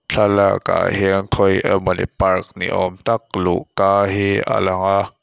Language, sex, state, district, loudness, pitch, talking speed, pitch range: Mizo, male, Mizoram, Aizawl, -17 LUFS, 95 Hz, 135 wpm, 95-100 Hz